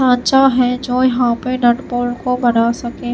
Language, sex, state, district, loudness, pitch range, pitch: Hindi, female, Himachal Pradesh, Shimla, -15 LUFS, 240-255 Hz, 245 Hz